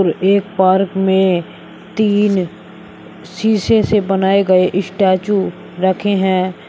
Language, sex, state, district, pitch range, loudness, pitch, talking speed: Hindi, male, Uttar Pradesh, Shamli, 185-200 Hz, -15 LUFS, 190 Hz, 100 wpm